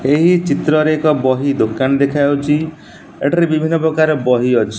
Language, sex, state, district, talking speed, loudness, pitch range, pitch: Odia, male, Odisha, Nuapada, 140 wpm, -15 LUFS, 140-155 Hz, 150 Hz